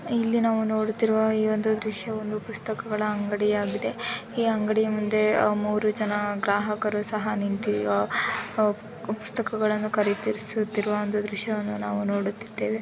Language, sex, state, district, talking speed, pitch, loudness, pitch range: Kannada, female, Karnataka, Chamarajanagar, 110 wpm, 215 Hz, -26 LUFS, 210-220 Hz